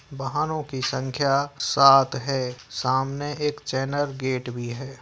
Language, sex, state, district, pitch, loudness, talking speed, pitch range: Hindi, female, Bihar, Saharsa, 135 Hz, -24 LUFS, 130 wpm, 130-140 Hz